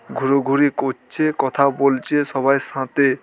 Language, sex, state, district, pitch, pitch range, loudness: Bengali, male, West Bengal, Dakshin Dinajpur, 140 Hz, 135-140 Hz, -19 LUFS